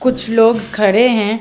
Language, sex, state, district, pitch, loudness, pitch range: Hindi, female, Chhattisgarh, Balrampur, 225 Hz, -13 LUFS, 220-240 Hz